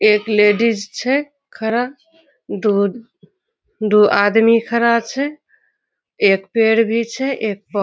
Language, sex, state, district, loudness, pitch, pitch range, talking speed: Maithili, female, Bihar, Saharsa, -16 LUFS, 225 Hz, 210-265 Hz, 120 wpm